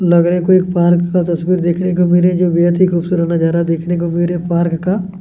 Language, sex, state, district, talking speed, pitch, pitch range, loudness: Hindi, male, Chhattisgarh, Kabirdham, 240 wpm, 175 Hz, 170-180 Hz, -14 LUFS